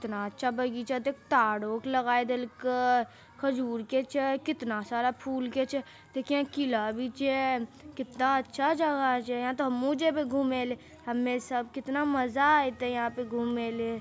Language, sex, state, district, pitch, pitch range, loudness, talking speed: Magahi, female, Bihar, Jamui, 255 Hz, 245-275 Hz, -30 LUFS, 165 wpm